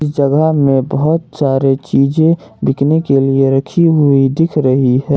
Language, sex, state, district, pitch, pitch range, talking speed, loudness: Hindi, male, Jharkhand, Ranchi, 140 Hz, 135-160 Hz, 160 wpm, -13 LUFS